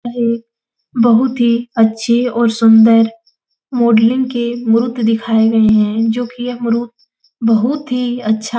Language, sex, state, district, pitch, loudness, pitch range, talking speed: Hindi, female, Uttar Pradesh, Etah, 235 Hz, -14 LUFS, 225-240 Hz, 145 wpm